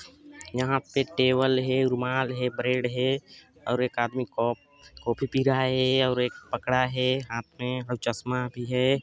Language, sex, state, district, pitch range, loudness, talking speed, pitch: Hindi, male, Chhattisgarh, Sarguja, 125-130 Hz, -27 LUFS, 175 wpm, 130 Hz